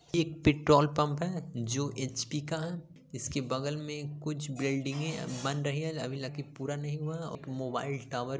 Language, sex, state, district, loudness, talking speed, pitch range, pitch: Hindi, male, Bihar, Gaya, -33 LUFS, 215 wpm, 135-155 Hz, 145 Hz